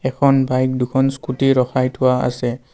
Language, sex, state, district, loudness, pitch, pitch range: Assamese, male, Assam, Kamrup Metropolitan, -18 LUFS, 130 Hz, 125-135 Hz